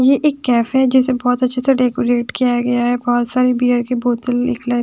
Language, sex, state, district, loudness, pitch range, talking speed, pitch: Hindi, female, Punjab, Pathankot, -16 LUFS, 245-255 Hz, 200 wpm, 245 Hz